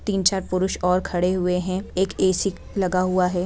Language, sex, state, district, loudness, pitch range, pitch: Hindi, female, Bihar, Purnia, -22 LUFS, 180-190 Hz, 185 Hz